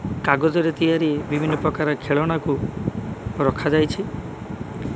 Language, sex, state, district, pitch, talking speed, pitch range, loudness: Odia, male, Odisha, Malkangiri, 150 Hz, 85 wpm, 135-155 Hz, -22 LUFS